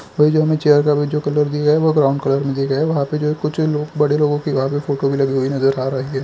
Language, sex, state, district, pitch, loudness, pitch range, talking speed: Hindi, male, Chhattisgarh, Bilaspur, 145 Hz, -17 LUFS, 135-150 Hz, 315 wpm